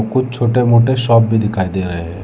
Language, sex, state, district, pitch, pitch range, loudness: Hindi, male, Telangana, Hyderabad, 115 Hz, 95-120 Hz, -14 LUFS